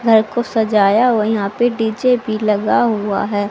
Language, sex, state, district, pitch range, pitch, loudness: Hindi, female, Haryana, Rohtak, 205-235 Hz, 220 Hz, -16 LUFS